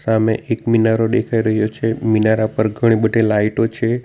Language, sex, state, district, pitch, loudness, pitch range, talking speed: Gujarati, male, Gujarat, Navsari, 110 Hz, -17 LUFS, 110-115 Hz, 180 wpm